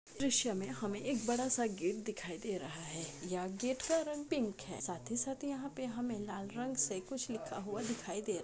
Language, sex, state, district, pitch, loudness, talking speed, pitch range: Hindi, female, Jharkhand, Sahebganj, 230 Hz, -38 LUFS, 215 wpm, 195-260 Hz